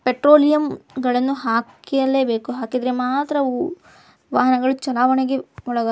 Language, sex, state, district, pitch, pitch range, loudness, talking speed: Kannada, female, Karnataka, Bijapur, 260 Hz, 250-275 Hz, -19 LUFS, 100 wpm